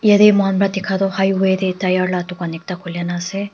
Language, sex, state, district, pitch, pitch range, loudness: Nagamese, female, Nagaland, Dimapur, 190 Hz, 180-195 Hz, -18 LUFS